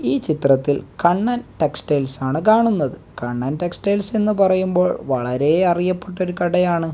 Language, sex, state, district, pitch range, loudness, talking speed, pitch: Malayalam, male, Kerala, Kasaragod, 140-185 Hz, -19 LUFS, 110 wpm, 175 Hz